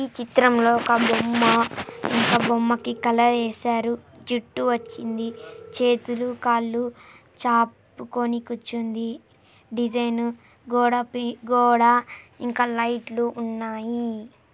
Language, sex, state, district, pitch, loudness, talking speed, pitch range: Telugu, female, Andhra Pradesh, Anantapur, 235 Hz, -23 LUFS, 85 wpm, 230-245 Hz